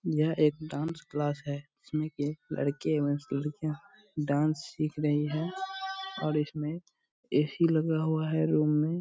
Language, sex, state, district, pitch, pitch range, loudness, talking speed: Hindi, male, Bihar, Purnia, 155 Hz, 150-160 Hz, -31 LUFS, 155 wpm